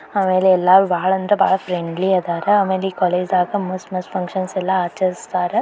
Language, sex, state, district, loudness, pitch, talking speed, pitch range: Kannada, female, Karnataka, Belgaum, -18 LUFS, 185 Hz, 160 wpm, 180-190 Hz